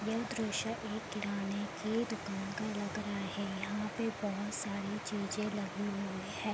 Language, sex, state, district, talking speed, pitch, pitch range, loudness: Hindi, female, Bihar, Gopalganj, 185 wpm, 205 Hz, 200-215 Hz, -38 LUFS